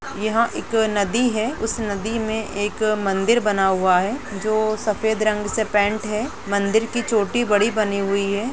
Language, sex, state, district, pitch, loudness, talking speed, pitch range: Hindi, female, Uttar Pradesh, Jalaun, 215 Hz, -21 LUFS, 175 wpm, 205-225 Hz